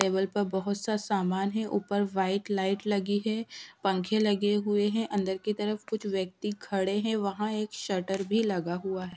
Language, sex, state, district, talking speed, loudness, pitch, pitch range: Hindi, female, Punjab, Fazilka, 185 wpm, -30 LUFS, 200 Hz, 190-210 Hz